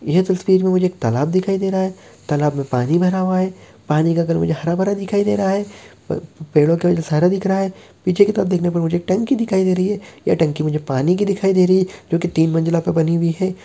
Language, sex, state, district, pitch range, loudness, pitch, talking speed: Hindi, male, Uttar Pradesh, Deoria, 165-190 Hz, -18 LUFS, 180 Hz, 275 wpm